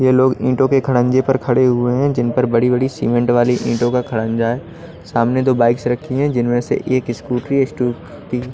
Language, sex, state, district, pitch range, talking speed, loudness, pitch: Hindi, male, Odisha, Malkangiri, 120-130 Hz, 210 wpm, -17 LUFS, 125 Hz